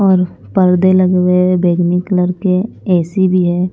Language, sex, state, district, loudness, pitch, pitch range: Hindi, female, Punjab, Pathankot, -13 LUFS, 180 Hz, 180-185 Hz